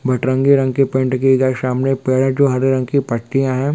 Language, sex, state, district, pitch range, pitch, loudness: Hindi, male, Bihar, Sitamarhi, 130-135 Hz, 130 Hz, -16 LUFS